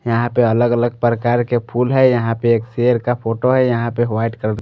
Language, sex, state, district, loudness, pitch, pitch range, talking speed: Hindi, male, Chandigarh, Chandigarh, -17 LUFS, 120 Hz, 115-125 Hz, 260 wpm